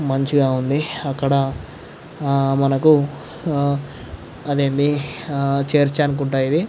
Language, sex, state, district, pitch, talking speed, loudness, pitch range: Telugu, male, Andhra Pradesh, Visakhapatnam, 140 Hz, 90 wpm, -19 LUFS, 135-145 Hz